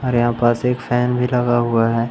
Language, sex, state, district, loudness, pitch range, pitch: Hindi, male, Madhya Pradesh, Umaria, -18 LUFS, 120-125 Hz, 120 Hz